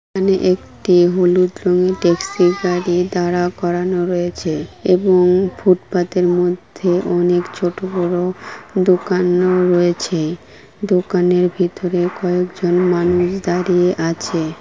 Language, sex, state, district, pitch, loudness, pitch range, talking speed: Bengali, female, West Bengal, Kolkata, 180 Hz, -16 LUFS, 175-185 Hz, 95 wpm